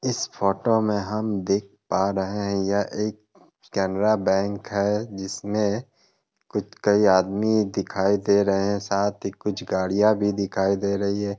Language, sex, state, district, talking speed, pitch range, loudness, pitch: Hindi, male, Bihar, Kishanganj, 160 wpm, 100-105 Hz, -24 LUFS, 100 Hz